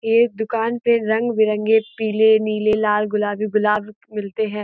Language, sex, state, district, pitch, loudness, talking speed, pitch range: Hindi, female, Uttar Pradesh, Gorakhpur, 215 Hz, -19 LUFS, 180 wpm, 210-225 Hz